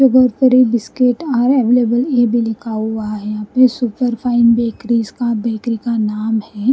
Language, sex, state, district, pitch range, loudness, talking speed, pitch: Hindi, female, Haryana, Rohtak, 225-250 Hz, -15 LUFS, 185 wpm, 235 Hz